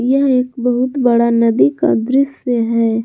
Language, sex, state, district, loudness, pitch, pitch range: Hindi, female, Jharkhand, Garhwa, -14 LUFS, 245 Hz, 230-255 Hz